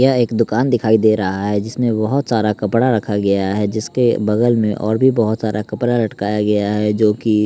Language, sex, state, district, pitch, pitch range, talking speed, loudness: Hindi, male, Bihar, West Champaran, 110 Hz, 105-120 Hz, 215 wpm, -17 LUFS